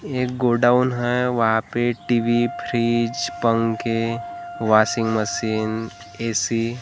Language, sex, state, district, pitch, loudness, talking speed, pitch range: Hindi, male, Maharashtra, Gondia, 115 Hz, -21 LUFS, 105 wpm, 115-120 Hz